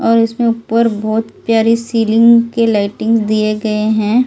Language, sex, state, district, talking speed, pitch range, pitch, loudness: Hindi, female, Delhi, New Delhi, 155 wpm, 215-230 Hz, 225 Hz, -13 LUFS